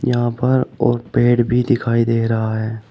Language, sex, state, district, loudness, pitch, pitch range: Hindi, male, Uttar Pradesh, Shamli, -17 LUFS, 120 Hz, 115-125 Hz